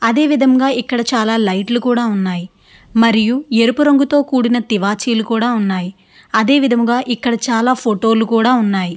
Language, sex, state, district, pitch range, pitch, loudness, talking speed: Telugu, female, Andhra Pradesh, Srikakulam, 220-250 Hz, 230 Hz, -14 LUFS, 155 wpm